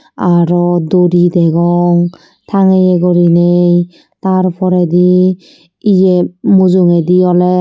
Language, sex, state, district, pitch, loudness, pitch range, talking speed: Chakma, female, Tripura, Unakoti, 180 Hz, -10 LUFS, 175-185 Hz, 80 wpm